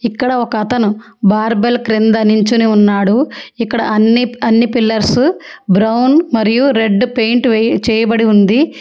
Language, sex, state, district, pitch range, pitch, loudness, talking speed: Telugu, female, Telangana, Hyderabad, 220-245 Hz, 230 Hz, -12 LUFS, 120 wpm